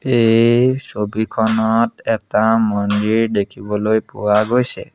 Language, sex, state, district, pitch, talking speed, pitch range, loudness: Assamese, male, Assam, Sonitpur, 110 Hz, 85 wpm, 105-115 Hz, -17 LUFS